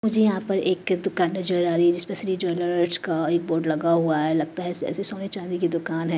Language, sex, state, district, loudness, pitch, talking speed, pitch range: Hindi, female, Chhattisgarh, Raipur, -23 LUFS, 175 Hz, 250 wpm, 170-185 Hz